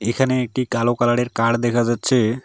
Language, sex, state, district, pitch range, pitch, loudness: Bengali, male, West Bengal, Alipurduar, 115-125 Hz, 120 Hz, -19 LUFS